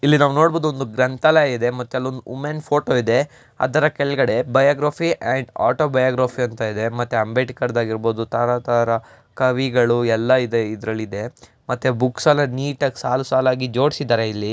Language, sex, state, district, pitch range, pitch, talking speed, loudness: Kannada, male, Karnataka, Mysore, 120-140 Hz, 130 Hz, 155 wpm, -19 LUFS